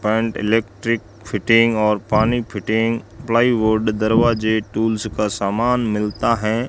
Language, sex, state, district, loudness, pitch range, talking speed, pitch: Hindi, male, Rajasthan, Bikaner, -19 LUFS, 105-115 Hz, 115 wpm, 110 Hz